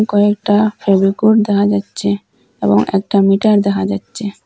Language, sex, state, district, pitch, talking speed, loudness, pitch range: Bengali, female, Assam, Hailakandi, 200 Hz, 120 wpm, -14 LUFS, 195-210 Hz